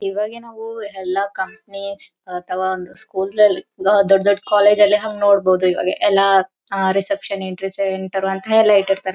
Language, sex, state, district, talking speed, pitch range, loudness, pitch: Kannada, female, Karnataka, Bellary, 155 wpm, 190-205 Hz, -17 LUFS, 195 Hz